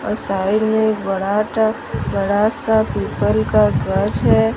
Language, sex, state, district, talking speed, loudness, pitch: Hindi, female, Odisha, Sambalpur, 130 wpm, -18 LUFS, 205 Hz